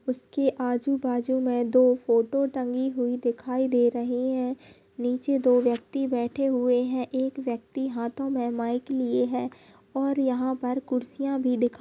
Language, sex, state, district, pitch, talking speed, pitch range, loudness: Hindi, female, Bihar, Bhagalpur, 255 Hz, 155 wpm, 245-265 Hz, -26 LUFS